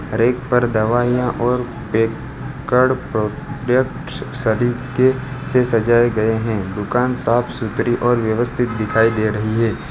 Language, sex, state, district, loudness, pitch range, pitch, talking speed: Hindi, male, Gujarat, Valsad, -18 LUFS, 110-125 Hz, 120 Hz, 125 wpm